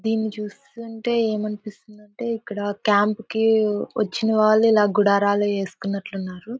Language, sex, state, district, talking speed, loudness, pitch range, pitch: Telugu, female, Andhra Pradesh, Anantapur, 100 wpm, -21 LUFS, 205-225 Hz, 215 Hz